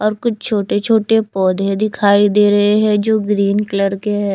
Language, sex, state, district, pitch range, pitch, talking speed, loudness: Hindi, female, Chandigarh, Chandigarh, 200-215 Hz, 205 Hz, 195 wpm, -15 LUFS